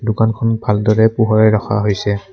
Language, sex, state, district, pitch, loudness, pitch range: Assamese, male, Assam, Kamrup Metropolitan, 110 Hz, -15 LUFS, 105-110 Hz